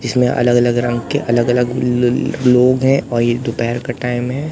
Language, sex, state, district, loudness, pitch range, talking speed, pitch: Hindi, male, Madhya Pradesh, Katni, -15 LUFS, 120-125 Hz, 225 wpm, 120 Hz